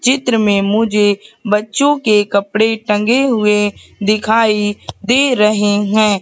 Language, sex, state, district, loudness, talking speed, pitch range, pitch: Hindi, female, Madhya Pradesh, Katni, -14 LUFS, 115 wpm, 205-225 Hz, 210 Hz